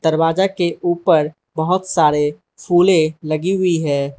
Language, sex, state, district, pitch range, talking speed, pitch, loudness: Hindi, male, Manipur, Imphal West, 150-180 Hz, 130 wpm, 165 Hz, -17 LUFS